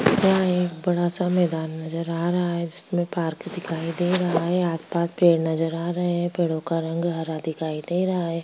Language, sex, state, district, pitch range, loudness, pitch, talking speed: Hindi, female, Bihar, Kishanganj, 165-180 Hz, -24 LUFS, 170 Hz, 205 wpm